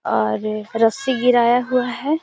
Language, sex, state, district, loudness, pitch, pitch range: Hindi, female, Bihar, Gaya, -18 LUFS, 240 Hz, 215-255 Hz